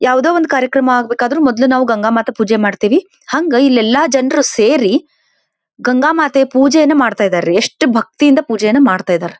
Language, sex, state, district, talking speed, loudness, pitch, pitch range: Kannada, female, Karnataka, Belgaum, 140 wpm, -12 LUFS, 260 Hz, 225-285 Hz